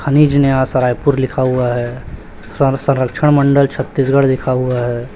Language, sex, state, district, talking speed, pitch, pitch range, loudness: Hindi, male, Chhattisgarh, Raipur, 150 wpm, 130 Hz, 125-140 Hz, -14 LUFS